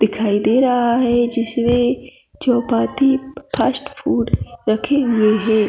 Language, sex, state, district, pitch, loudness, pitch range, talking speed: Hindi, female, Chhattisgarh, Kabirdham, 240 Hz, -17 LUFS, 220-250 Hz, 115 wpm